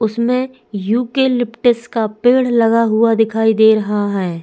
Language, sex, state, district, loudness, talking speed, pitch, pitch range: Hindi, female, Goa, North and South Goa, -15 LUFS, 165 wpm, 225 Hz, 215-245 Hz